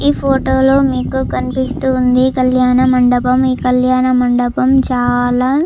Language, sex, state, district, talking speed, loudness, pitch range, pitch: Telugu, female, Andhra Pradesh, Chittoor, 140 wpm, -13 LUFS, 250-265 Hz, 255 Hz